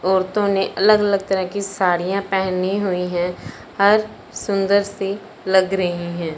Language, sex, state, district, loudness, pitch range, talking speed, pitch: Hindi, male, Punjab, Fazilka, -19 LUFS, 185-200 Hz, 140 wpm, 195 Hz